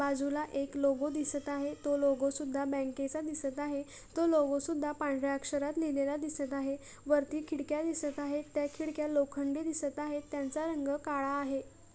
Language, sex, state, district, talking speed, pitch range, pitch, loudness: Marathi, female, Maharashtra, Solapur, 160 wpm, 280-300 Hz, 285 Hz, -34 LUFS